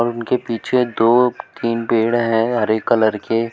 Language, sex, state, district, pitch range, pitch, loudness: Hindi, male, Uttar Pradesh, Shamli, 115-120 Hz, 115 Hz, -18 LUFS